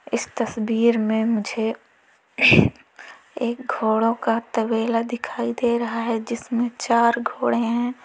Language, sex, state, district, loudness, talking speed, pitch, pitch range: Hindi, female, Uttar Pradesh, Lalitpur, -22 LUFS, 120 wpm, 235 Hz, 225-235 Hz